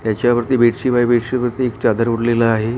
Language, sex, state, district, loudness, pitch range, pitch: Marathi, male, Maharashtra, Gondia, -16 LUFS, 115-125 Hz, 120 Hz